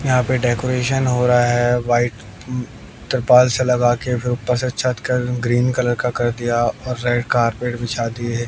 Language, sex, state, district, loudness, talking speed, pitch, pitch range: Hindi, male, Haryana, Jhajjar, -18 LUFS, 200 wpm, 125 Hz, 120-125 Hz